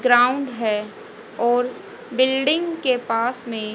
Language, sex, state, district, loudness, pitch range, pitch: Hindi, female, Haryana, Jhajjar, -21 LUFS, 230-260 Hz, 245 Hz